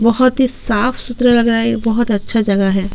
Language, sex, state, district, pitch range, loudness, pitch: Hindi, female, Chhattisgarh, Sukma, 210-245 Hz, -15 LUFS, 230 Hz